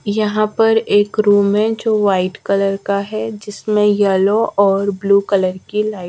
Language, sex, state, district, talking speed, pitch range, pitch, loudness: Hindi, female, Madhya Pradesh, Dhar, 175 wpm, 200-215 Hz, 205 Hz, -15 LUFS